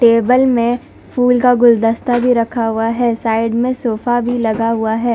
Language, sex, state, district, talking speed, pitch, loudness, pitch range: Hindi, female, Punjab, Fazilka, 185 wpm, 235 Hz, -14 LUFS, 230-245 Hz